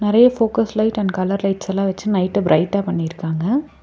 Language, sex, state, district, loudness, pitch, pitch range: Tamil, female, Tamil Nadu, Nilgiris, -19 LUFS, 200 Hz, 185-220 Hz